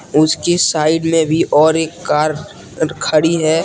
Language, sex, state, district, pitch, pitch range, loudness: Hindi, male, Jharkhand, Deoghar, 160 Hz, 155-165 Hz, -14 LUFS